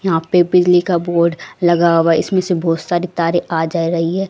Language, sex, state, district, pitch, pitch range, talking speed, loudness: Hindi, female, Haryana, Rohtak, 170 Hz, 165-180 Hz, 235 wpm, -15 LUFS